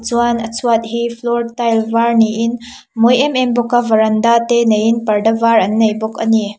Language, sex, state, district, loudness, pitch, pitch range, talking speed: Mizo, female, Mizoram, Aizawl, -14 LUFS, 230 Hz, 225-235 Hz, 220 wpm